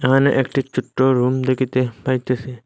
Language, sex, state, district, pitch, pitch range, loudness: Bengali, male, Assam, Hailakandi, 130 Hz, 125-130 Hz, -19 LUFS